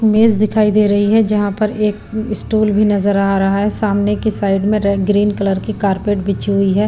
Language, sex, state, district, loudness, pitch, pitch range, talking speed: Hindi, female, Punjab, Pathankot, -15 LUFS, 205 Hz, 200-215 Hz, 225 wpm